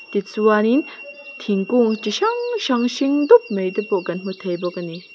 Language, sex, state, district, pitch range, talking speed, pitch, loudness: Mizo, female, Mizoram, Aizawl, 195-280 Hz, 185 wpm, 215 Hz, -19 LUFS